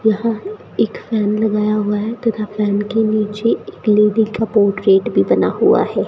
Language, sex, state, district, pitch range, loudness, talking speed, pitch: Hindi, female, Rajasthan, Bikaner, 210-220 Hz, -16 LUFS, 190 wpm, 215 Hz